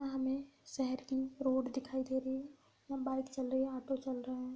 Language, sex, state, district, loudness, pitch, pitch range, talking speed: Hindi, female, Bihar, Bhagalpur, -39 LUFS, 265 Hz, 260-270 Hz, 235 wpm